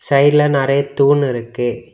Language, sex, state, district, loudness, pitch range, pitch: Tamil, male, Tamil Nadu, Kanyakumari, -15 LUFS, 130-145 Hz, 140 Hz